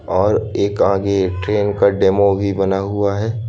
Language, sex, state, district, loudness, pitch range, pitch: Hindi, male, Madhya Pradesh, Bhopal, -17 LUFS, 95-100 Hz, 100 Hz